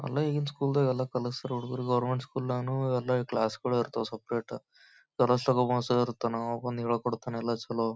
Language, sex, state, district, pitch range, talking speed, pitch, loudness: Kannada, male, Karnataka, Gulbarga, 120-130 Hz, 145 wpm, 125 Hz, -30 LUFS